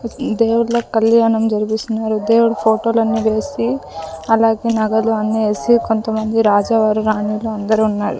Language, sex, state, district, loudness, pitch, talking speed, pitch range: Telugu, female, Andhra Pradesh, Sri Satya Sai, -16 LUFS, 220 Hz, 115 wpm, 215-230 Hz